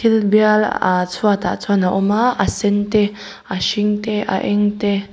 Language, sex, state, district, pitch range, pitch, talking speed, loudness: Mizo, female, Mizoram, Aizawl, 195-215 Hz, 205 Hz, 210 wpm, -17 LUFS